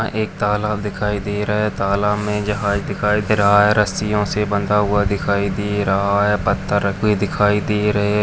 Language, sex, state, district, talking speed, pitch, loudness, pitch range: Hindi, male, Chhattisgarh, Jashpur, 195 wpm, 105 Hz, -18 LUFS, 100-105 Hz